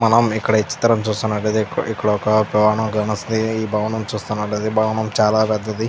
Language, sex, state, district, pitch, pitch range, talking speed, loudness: Telugu, male, Andhra Pradesh, Krishna, 110 Hz, 105-110 Hz, 165 wpm, -19 LUFS